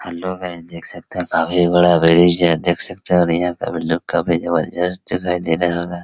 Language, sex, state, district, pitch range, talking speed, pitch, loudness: Hindi, male, Bihar, Araria, 85-90 Hz, 230 wpm, 85 Hz, -17 LUFS